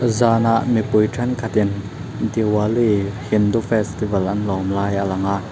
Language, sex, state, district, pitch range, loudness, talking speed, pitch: Mizo, male, Mizoram, Aizawl, 100-115 Hz, -19 LUFS, 130 wpm, 105 Hz